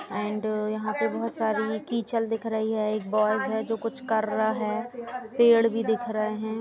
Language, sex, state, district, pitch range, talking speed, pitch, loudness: Hindi, female, Uttar Pradesh, Jalaun, 215-230 Hz, 210 wpm, 220 Hz, -27 LUFS